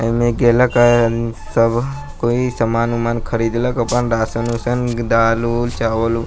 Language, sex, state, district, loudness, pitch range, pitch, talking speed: Maithili, male, Bihar, Sitamarhi, -17 LUFS, 115-120 Hz, 115 Hz, 135 wpm